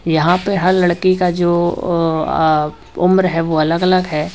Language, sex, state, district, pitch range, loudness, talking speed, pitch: Hindi, male, Uttar Pradesh, Lalitpur, 160-185 Hz, -15 LUFS, 195 wpm, 175 Hz